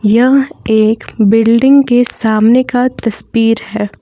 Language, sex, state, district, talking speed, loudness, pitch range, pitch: Hindi, female, Jharkhand, Palamu, 120 wpm, -11 LUFS, 220-250 Hz, 225 Hz